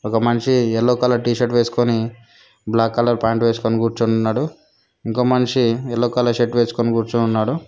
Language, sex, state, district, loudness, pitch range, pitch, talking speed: Telugu, female, Telangana, Mahabubabad, -18 LUFS, 115-120 Hz, 120 Hz, 155 wpm